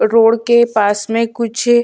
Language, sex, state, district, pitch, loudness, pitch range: Hindi, female, Chhattisgarh, Sukma, 230 Hz, -14 LUFS, 220-235 Hz